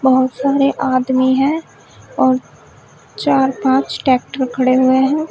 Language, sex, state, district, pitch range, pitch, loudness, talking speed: Hindi, female, Uttar Pradesh, Shamli, 260-275 Hz, 260 Hz, -15 LUFS, 125 wpm